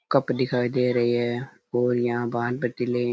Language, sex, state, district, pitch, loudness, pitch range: Rajasthani, male, Rajasthan, Churu, 120 Hz, -25 LUFS, 120-125 Hz